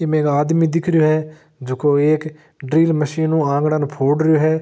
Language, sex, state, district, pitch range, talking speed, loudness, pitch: Marwari, male, Rajasthan, Nagaur, 145-160 Hz, 210 wpm, -17 LUFS, 155 Hz